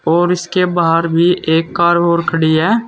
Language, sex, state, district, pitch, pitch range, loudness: Hindi, male, Uttar Pradesh, Saharanpur, 170 Hz, 165-175 Hz, -13 LUFS